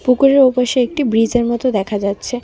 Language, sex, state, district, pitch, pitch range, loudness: Bengali, female, Tripura, West Tripura, 245 Hz, 225-255 Hz, -15 LUFS